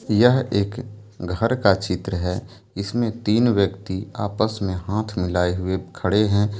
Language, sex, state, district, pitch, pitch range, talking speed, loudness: Hindi, male, Jharkhand, Deoghar, 100 Hz, 95-110 Hz, 145 wpm, -22 LUFS